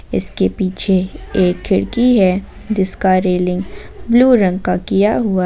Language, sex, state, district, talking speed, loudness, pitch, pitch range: Hindi, female, Jharkhand, Ranchi, 145 wpm, -15 LUFS, 190 Hz, 180-210 Hz